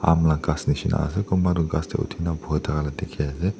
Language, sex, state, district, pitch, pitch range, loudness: Nagamese, male, Nagaland, Dimapur, 85 Hz, 75-95 Hz, -24 LUFS